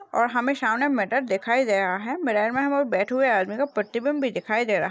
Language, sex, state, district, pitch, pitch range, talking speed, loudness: Hindi, female, Rajasthan, Nagaur, 240 Hz, 210-275 Hz, 255 wpm, -23 LUFS